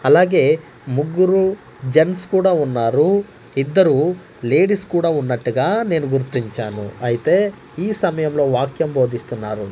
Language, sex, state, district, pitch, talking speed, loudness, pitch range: Telugu, male, Andhra Pradesh, Manyam, 145 Hz, 100 wpm, -18 LUFS, 120-190 Hz